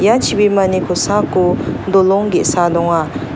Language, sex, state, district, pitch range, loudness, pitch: Garo, female, Meghalaya, North Garo Hills, 170-200 Hz, -14 LUFS, 190 Hz